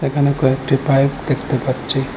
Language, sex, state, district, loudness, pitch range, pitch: Bengali, male, Assam, Hailakandi, -17 LUFS, 130-140 Hz, 135 Hz